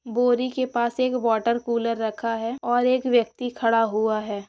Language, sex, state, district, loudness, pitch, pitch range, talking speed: Hindi, female, Maharashtra, Dhule, -23 LUFS, 235 Hz, 225-245 Hz, 175 wpm